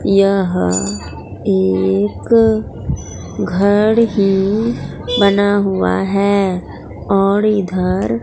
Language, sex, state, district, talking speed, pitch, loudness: Hindi, female, Bihar, Katihar, 65 wpm, 195 Hz, -15 LUFS